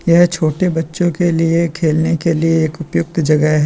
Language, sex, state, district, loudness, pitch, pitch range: Hindi, male, Uttar Pradesh, Lalitpur, -15 LUFS, 165 Hz, 160-170 Hz